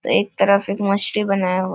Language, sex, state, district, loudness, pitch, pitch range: Hindi, female, Bihar, Vaishali, -19 LUFS, 200 Hz, 195-205 Hz